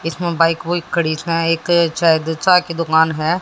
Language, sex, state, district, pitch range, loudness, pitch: Hindi, female, Haryana, Jhajjar, 160-170 Hz, -16 LUFS, 165 Hz